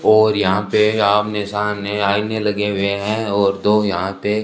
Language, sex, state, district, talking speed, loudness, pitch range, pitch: Hindi, male, Rajasthan, Bikaner, 175 wpm, -17 LUFS, 100-105 Hz, 105 Hz